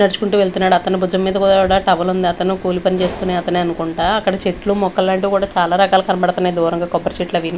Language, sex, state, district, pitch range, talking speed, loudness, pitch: Telugu, female, Andhra Pradesh, Manyam, 180-195 Hz, 180 wpm, -16 LUFS, 185 Hz